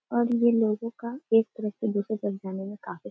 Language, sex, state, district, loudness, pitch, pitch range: Hindi, female, Bihar, Darbhanga, -27 LUFS, 225 Hz, 205-235 Hz